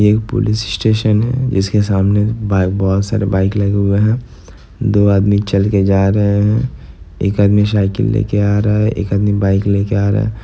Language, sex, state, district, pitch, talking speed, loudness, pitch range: Hindi, male, Bihar, Gopalganj, 100 Hz, 200 wpm, -14 LUFS, 100-105 Hz